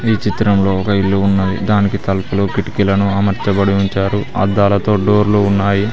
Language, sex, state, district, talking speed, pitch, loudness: Telugu, male, Telangana, Mahabubabad, 130 wpm, 100 Hz, -15 LUFS